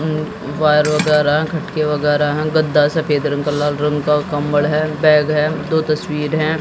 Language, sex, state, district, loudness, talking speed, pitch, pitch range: Hindi, female, Haryana, Jhajjar, -16 LUFS, 180 wpm, 150 Hz, 150-155 Hz